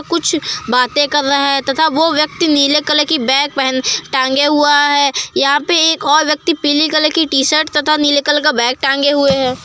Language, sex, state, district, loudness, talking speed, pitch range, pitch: Hindi, female, Uttar Pradesh, Muzaffarnagar, -13 LUFS, 205 wpm, 275-305 Hz, 295 Hz